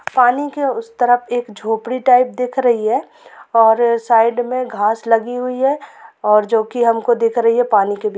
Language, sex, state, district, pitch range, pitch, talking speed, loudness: Hindi, female, Jharkhand, Sahebganj, 225-250 Hz, 235 Hz, 200 wpm, -16 LUFS